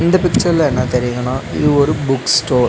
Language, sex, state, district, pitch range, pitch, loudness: Tamil, male, Tamil Nadu, Nilgiris, 125-160 Hz, 140 Hz, -15 LUFS